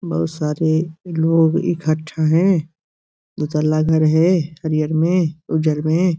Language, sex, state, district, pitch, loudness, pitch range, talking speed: Hindi, male, Uttar Pradesh, Gorakhpur, 160 Hz, -18 LUFS, 155-165 Hz, 115 wpm